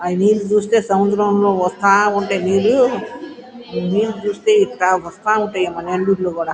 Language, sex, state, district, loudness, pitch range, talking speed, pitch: Telugu, female, Andhra Pradesh, Guntur, -16 LUFS, 185-215 Hz, 130 wpm, 200 Hz